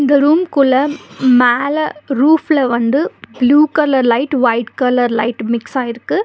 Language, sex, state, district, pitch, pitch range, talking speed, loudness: Tamil, female, Tamil Nadu, Nilgiris, 265 Hz, 245-295 Hz, 135 wpm, -14 LUFS